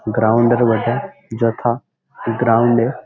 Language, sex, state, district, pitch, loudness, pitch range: Bengali, male, West Bengal, Malda, 120 Hz, -16 LUFS, 115-120 Hz